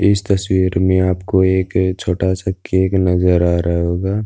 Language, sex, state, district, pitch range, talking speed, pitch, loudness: Hindi, male, Uttar Pradesh, Budaun, 90-95 Hz, 170 wpm, 95 Hz, -16 LUFS